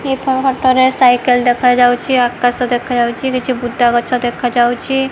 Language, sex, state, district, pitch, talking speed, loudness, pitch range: Odia, female, Odisha, Khordha, 250 Hz, 130 wpm, -13 LUFS, 245-260 Hz